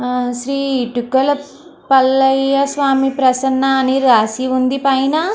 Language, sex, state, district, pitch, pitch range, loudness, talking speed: Telugu, female, Andhra Pradesh, Anantapur, 265 Hz, 260-275 Hz, -15 LUFS, 125 wpm